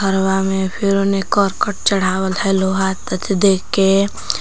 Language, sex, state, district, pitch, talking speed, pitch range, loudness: Magahi, female, Jharkhand, Palamu, 195 Hz, 150 wpm, 190-195 Hz, -17 LUFS